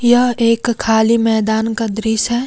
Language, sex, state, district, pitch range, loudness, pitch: Hindi, female, Jharkhand, Deoghar, 220-235 Hz, -15 LUFS, 230 Hz